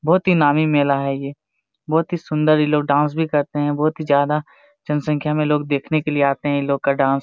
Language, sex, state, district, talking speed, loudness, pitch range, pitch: Hindi, male, Jharkhand, Jamtara, 230 wpm, -19 LUFS, 145-155 Hz, 150 Hz